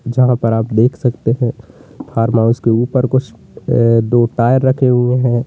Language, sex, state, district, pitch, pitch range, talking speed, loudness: Hindi, male, Uttar Pradesh, Lalitpur, 120 Hz, 115-125 Hz, 185 wpm, -14 LUFS